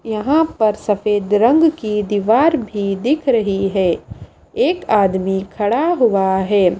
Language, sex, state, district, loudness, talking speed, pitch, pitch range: Hindi, female, Maharashtra, Washim, -16 LUFS, 130 wpm, 210 Hz, 195-245 Hz